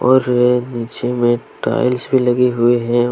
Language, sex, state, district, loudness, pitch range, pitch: Hindi, male, Jharkhand, Deoghar, -16 LUFS, 120-125 Hz, 125 Hz